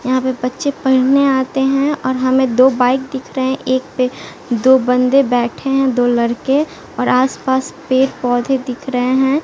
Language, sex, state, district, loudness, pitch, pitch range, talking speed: Hindi, female, Bihar, West Champaran, -15 LUFS, 260 Hz, 250-270 Hz, 185 wpm